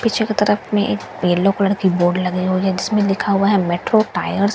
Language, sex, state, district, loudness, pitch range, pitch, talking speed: Hindi, female, Bihar, Katihar, -17 LUFS, 185-210 Hz, 195 Hz, 250 wpm